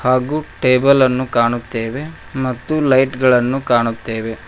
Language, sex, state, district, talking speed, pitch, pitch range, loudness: Kannada, male, Karnataka, Koppal, 105 wpm, 125 Hz, 115-135 Hz, -16 LUFS